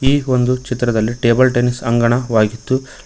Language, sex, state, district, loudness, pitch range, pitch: Kannada, male, Karnataka, Koppal, -16 LUFS, 115-130 Hz, 125 Hz